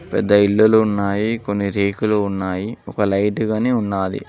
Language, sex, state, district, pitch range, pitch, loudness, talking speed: Telugu, male, Telangana, Mahabubabad, 100-110 Hz, 100 Hz, -18 LUFS, 140 wpm